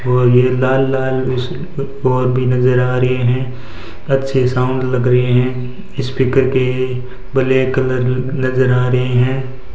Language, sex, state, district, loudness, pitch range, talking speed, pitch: Hindi, male, Rajasthan, Bikaner, -15 LUFS, 125-130 Hz, 140 wpm, 130 Hz